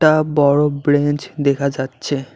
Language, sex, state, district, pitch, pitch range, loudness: Bengali, male, West Bengal, Alipurduar, 145 Hz, 140-150 Hz, -17 LUFS